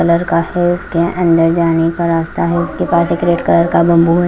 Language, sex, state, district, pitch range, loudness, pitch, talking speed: Hindi, female, Chandigarh, Chandigarh, 170-175 Hz, -13 LUFS, 170 Hz, 240 wpm